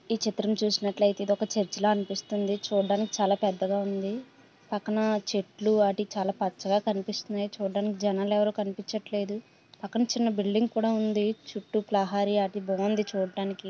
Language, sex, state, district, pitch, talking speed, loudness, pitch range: Telugu, female, Andhra Pradesh, Visakhapatnam, 205 Hz, 95 wpm, -28 LUFS, 200-215 Hz